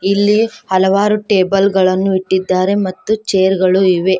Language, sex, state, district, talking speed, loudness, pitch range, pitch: Kannada, female, Karnataka, Koppal, 130 wpm, -13 LUFS, 185-200 Hz, 190 Hz